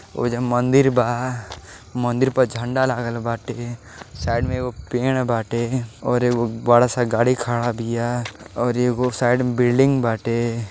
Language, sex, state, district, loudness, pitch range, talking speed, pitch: Bhojpuri, male, Uttar Pradesh, Deoria, -21 LUFS, 115-125 Hz, 150 wpm, 120 Hz